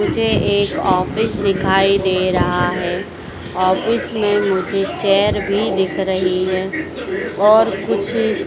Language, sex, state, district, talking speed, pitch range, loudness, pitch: Hindi, female, Madhya Pradesh, Dhar, 120 wpm, 185-200 Hz, -17 LUFS, 190 Hz